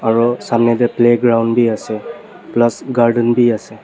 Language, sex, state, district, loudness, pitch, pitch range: Nagamese, male, Nagaland, Dimapur, -14 LUFS, 120 Hz, 115-120 Hz